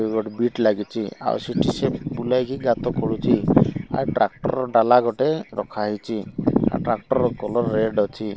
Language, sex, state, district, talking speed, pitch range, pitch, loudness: Odia, male, Odisha, Malkangiri, 160 wpm, 110-125 Hz, 115 Hz, -22 LUFS